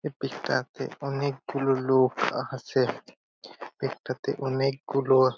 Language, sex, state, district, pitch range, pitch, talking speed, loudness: Bengali, male, West Bengal, Purulia, 130-135 Hz, 135 Hz, 155 wpm, -28 LUFS